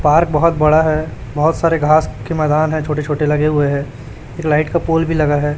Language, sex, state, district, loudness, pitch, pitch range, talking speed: Hindi, male, Chhattisgarh, Raipur, -15 LUFS, 150 Hz, 150-160 Hz, 235 wpm